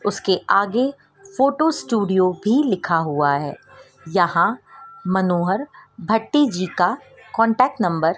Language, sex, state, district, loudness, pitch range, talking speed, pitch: Hindi, female, Madhya Pradesh, Dhar, -20 LUFS, 180-270 Hz, 115 wpm, 200 Hz